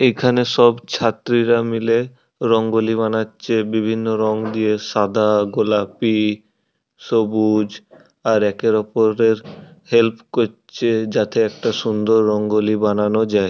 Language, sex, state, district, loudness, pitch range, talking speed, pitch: Bengali, male, West Bengal, Purulia, -18 LUFS, 105-115 Hz, 100 wpm, 110 Hz